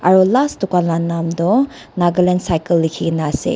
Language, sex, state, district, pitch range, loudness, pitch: Nagamese, female, Nagaland, Dimapur, 165-185 Hz, -16 LUFS, 175 Hz